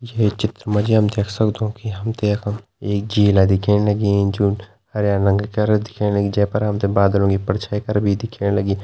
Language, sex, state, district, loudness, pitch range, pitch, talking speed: Garhwali, male, Uttarakhand, Tehri Garhwal, -19 LUFS, 100-105 Hz, 105 Hz, 170 wpm